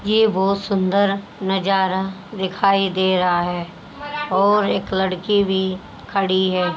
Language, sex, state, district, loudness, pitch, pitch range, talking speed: Hindi, female, Haryana, Jhajjar, -19 LUFS, 195 Hz, 190-200 Hz, 135 wpm